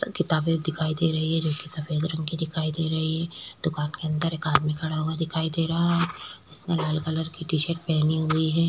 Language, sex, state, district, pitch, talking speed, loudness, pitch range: Hindi, female, Chhattisgarh, Korba, 160 Hz, 235 wpm, -26 LUFS, 155-165 Hz